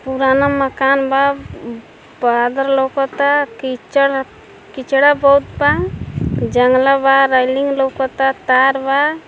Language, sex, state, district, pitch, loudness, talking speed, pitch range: Hindi, female, Uttar Pradesh, Gorakhpur, 270 Hz, -15 LUFS, 105 wpm, 265-275 Hz